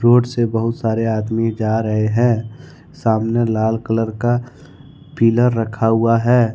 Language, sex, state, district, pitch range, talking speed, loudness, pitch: Hindi, male, Jharkhand, Ranchi, 110-120 Hz, 145 wpm, -17 LUFS, 115 Hz